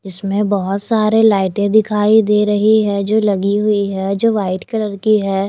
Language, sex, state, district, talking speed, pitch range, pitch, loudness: Hindi, female, Haryana, Jhajjar, 185 wpm, 195-215 Hz, 205 Hz, -15 LUFS